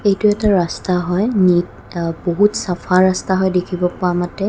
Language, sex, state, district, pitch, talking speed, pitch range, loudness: Assamese, female, Assam, Kamrup Metropolitan, 185 Hz, 160 wpm, 180-200 Hz, -17 LUFS